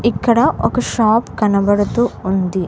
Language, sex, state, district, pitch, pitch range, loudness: Telugu, female, Telangana, Mahabubabad, 210 Hz, 200-235 Hz, -16 LUFS